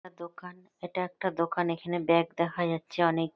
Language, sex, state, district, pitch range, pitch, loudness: Bengali, female, West Bengal, North 24 Parganas, 170-180 Hz, 170 Hz, -29 LUFS